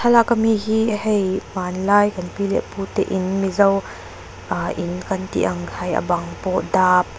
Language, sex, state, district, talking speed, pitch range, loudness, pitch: Mizo, female, Mizoram, Aizawl, 190 wpm, 180-205 Hz, -20 LUFS, 190 Hz